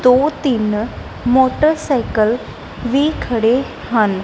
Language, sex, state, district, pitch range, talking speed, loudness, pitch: Punjabi, female, Punjab, Kapurthala, 225-275 Hz, 85 wpm, -17 LUFS, 250 Hz